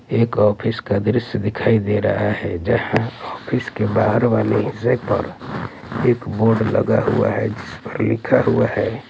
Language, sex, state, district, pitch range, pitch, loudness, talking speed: Hindi, male, Delhi, New Delhi, 105-115 Hz, 110 Hz, -19 LUFS, 165 wpm